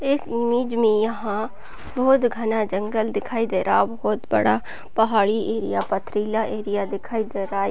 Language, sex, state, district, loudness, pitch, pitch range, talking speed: Hindi, female, Uttar Pradesh, Deoria, -22 LUFS, 220 Hz, 205-235 Hz, 155 wpm